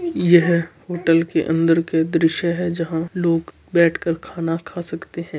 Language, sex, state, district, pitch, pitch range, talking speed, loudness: Marwari, male, Rajasthan, Churu, 170 Hz, 165-175 Hz, 165 wpm, -20 LUFS